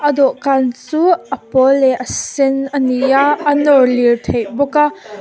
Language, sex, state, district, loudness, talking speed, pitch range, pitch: Mizo, female, Mizoram, Aizawl, -14 LUFS, 185 wpm, 255-285 Hz, 270 Hz